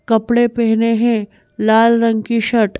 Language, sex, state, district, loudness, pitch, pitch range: Hindi, female, Madhya Pradesh, Bhopal, -15 LUFS, 230 Hz, 220-235 Hz